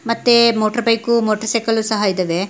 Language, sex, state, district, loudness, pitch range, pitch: Kannada, female, Karnataka, Mysore, -16 LUFS, 215-235 Hz, 225 Hz